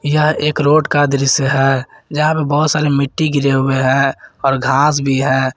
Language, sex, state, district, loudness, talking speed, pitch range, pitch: Hindi, male, Jharkhand, Garhwa, -14 LUFS, 195 wpm, 135-150 Hz, 140 Hz